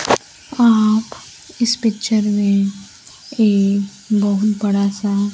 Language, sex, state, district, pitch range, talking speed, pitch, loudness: Hindi, female, Bihar, Kaimur, 200-225 Hz, 90 wpm, 210 Hz, -17 LUFS